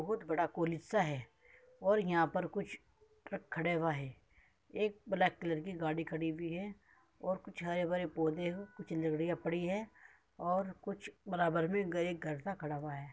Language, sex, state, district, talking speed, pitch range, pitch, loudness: Hindi, male, Uttar Pradesh, Muzaffarnagar, 170 wpm, 160-195 Hz, 175 Hz, -37 LUFS